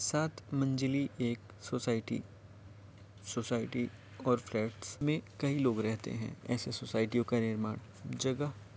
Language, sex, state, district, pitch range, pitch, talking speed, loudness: Hindi, male, Uttar Pradesh, Varanasi, 105-130 Hz, 115 Hz, 125 wpm, -35 LUFS